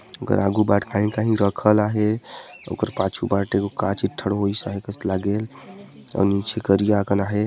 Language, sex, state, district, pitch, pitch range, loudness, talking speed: Chhattisgarhi, male, Chhattisgarh, Sarguja, 100 Hz, 100-105 Hz, -22 LUFS, 175 wpm